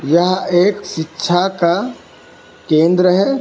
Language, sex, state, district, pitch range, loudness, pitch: Hindi, male, Karnataka, Bangalore, 170-195 Hz, -15 LUFS, 180 Hz